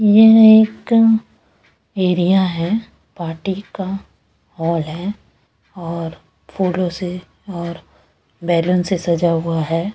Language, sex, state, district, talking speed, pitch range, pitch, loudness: Hindi, female, Bihar, West Champaran, 100 wpm, 170-200 Hz, 180 Hz, -17 LUFS